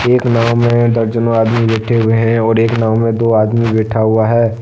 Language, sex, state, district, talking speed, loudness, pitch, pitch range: Hindi, male, Jharkhand, Deoghar, 220 wpm, -13 LUFS, 115 Hz, 110-115 Hz